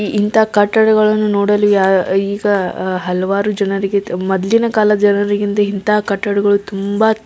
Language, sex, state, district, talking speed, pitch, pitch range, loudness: Kannada, female, Karnataka, Belgaum, 125 wpm, 205 Hz, 195-210 Hz, -14 LUFS